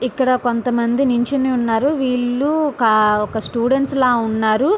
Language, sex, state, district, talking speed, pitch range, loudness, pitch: Telugu, female, Andhra Pradesh, Srikakulam, 115 wpm, 230-270 Hz, -17 LUFS, 245 Hz